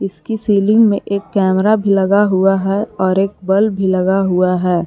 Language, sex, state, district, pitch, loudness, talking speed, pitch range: Hindi, female, Jharkhand, Palamu, 195 Hz, -14 LUFS, 170 wpm, 185-205 Hz